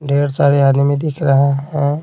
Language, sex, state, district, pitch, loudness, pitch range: Hindi, male, Bihar, Patna, 140 Hz, -15 LUFS, 140-145 Hz